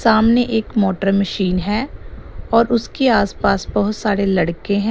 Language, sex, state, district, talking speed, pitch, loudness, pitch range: Hindi, female, Assam, Sonitpur, 145 wpm, 210 Hz, -17 LUFS, 195-230 Hz